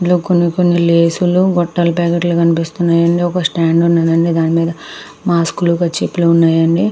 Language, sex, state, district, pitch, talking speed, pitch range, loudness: Telugu, female, Andhra Pradesh, Krishna, 170 Hz, 155 wpm, 165-175 Hz, -13 LUFS